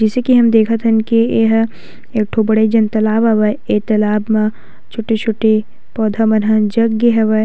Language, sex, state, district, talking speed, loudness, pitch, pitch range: Chhattisgarhi, female, Chhattisgarh, Sukma, 185 wpm, -14 LUFS, 220 Hz, 215-225 Hz